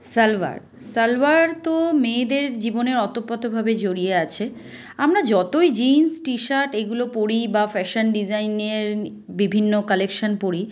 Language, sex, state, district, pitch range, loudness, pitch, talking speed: Bengali, female, West Bengal, Kolkata, 210-255 Hz, -21 LUFS, 225 Hz, 125 wpm